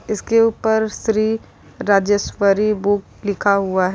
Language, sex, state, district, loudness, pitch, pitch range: Hindi, female, Uttar Pradesh, Lalitpur, -18 LUFS, 205 Hz, 200-220 Hz